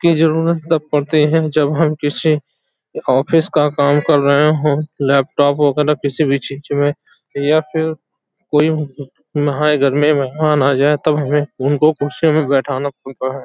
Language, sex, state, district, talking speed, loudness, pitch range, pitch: Hindi, male, Uttar Pradesh, Hamirpur, 160 wpm, -15 LUFS, 140-155 Hz, 150 Hz